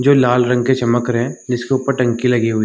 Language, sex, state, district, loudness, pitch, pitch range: Hindi, male, Jharkhand, Sahebganj, -16 LUFS, 125 Hz, 120-130 Hz